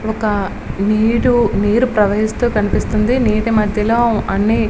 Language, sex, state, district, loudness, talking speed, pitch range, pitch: Telugu, female, Andhra Pradesh, Srikakulam, -15 LUFS, 115 wpm, 210-230 Hz, 220 Hz